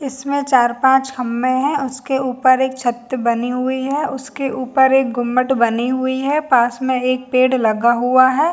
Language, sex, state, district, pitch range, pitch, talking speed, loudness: Hindi, female, Jharkhand, Jamtara, 250-265 Hz, 260 Hz, 185 wpm, -17 LUFS